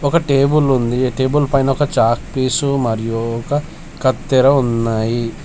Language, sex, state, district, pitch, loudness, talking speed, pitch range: Telugu, male, Telangana, Komaram Bheem, 135 Hz, -16 LUFS, 120 wpm, 120-145 Hz